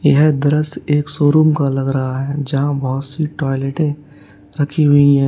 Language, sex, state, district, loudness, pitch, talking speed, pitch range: Hindi, male, Uttar Pradesh, Lalitpur, -16 LUFS, 145 Hz, 170 wpm, 135-150 Hz